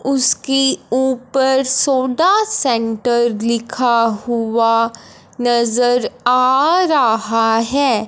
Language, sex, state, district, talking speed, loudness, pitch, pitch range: Hindi, female, Punjab, Fazilka, 75 wpm, -15 LUFS, 245 Hz, 230-270 Hz